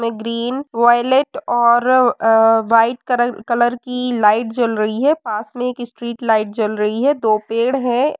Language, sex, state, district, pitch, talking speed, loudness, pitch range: Hindi, female, Uttar Pradesh, Varanasi, 235 Hz, 170 wpm, -16 LUFS, 225-250 Hz